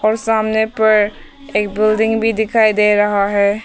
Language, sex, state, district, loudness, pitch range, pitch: Hindi, female, Arunachal Pradesh, Papum Pare, -15 LUFS, 210-220 Hz, 215 Hz